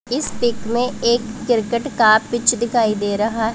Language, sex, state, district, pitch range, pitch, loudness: Hindi, female, Punjab, Pathankot, 220-240 Hz, 235 Hz, -18 LUFS